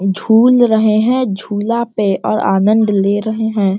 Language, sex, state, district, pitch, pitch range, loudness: Hindi, male, Bihar, Sitamarhi, 215 Hz, 200-225 Hz, -13 LUFS